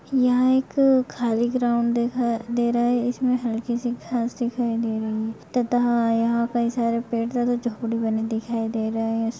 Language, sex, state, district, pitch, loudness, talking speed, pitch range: Hindi, female, Bihar, Saharsa, 235 Hz, -23 LUFS, 180 wpm, 230-245 Hz